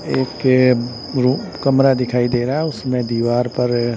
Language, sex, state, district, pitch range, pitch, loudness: Hindi, male, Bihar, Patna, 120-130 Hz, 125 Hz, -17 LUFS